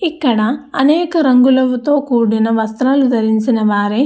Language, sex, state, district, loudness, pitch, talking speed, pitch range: Telugu, female, Andhra Pradesh, Anantapur, -13 LUFS, 255 Hz, 105 wpm, 225-280 Hz